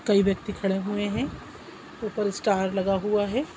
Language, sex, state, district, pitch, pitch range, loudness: Hindi, female, Chhattisgarh, Sukma, 205 Hz, 195-210 Hz, -26 LUFS